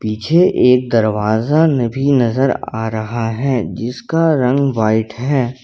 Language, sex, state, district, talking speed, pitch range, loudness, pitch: Hindi, male, Jharkhand, Ranchi, 130 wpm, 110-135 Hz, -15 LUFS, 125 Hz